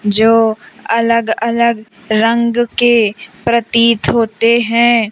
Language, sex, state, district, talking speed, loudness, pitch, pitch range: Hindi, female, Madhya Pradesh, Umaria, 80 wpm, -13 LUFS, 230 Hz, 220-235 Hz